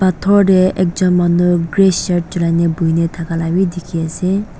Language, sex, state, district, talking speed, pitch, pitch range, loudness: Nagamese, female, Nagaland, Dimapur, 170 wpm, 175 Hz, 170-185 Hz, -15 LUFS